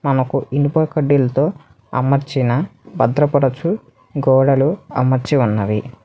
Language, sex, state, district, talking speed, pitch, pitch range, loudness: Telugu, male, Telangana, Hyderabad, 80 wpm, 135 Hz, 125-145 Hz, -17 LUFS